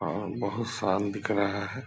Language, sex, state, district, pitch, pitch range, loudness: Hindi, male, Bihar, Purnia, 100 Hz, 100-110 Hz, -30 LUFS